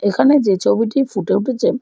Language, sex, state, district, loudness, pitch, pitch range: Bengali, female, West Bengal, Jalpaiguri, -16 LUFS, 225 Hz, 200-270 Hz